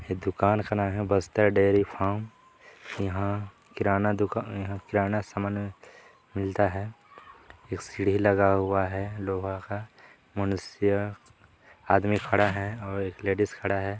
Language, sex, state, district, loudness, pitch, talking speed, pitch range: Hindi, male, Chhattisgarh, Balrampur, -27 LUFS, 100 Hz, 135 wpm, 95-105 Hz